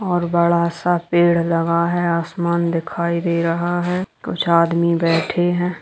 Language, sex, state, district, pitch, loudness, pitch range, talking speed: Hindi, female, Bihar, Gaya, 170 Hz, -18 LUFS, 170-175 Hz, 155 wpm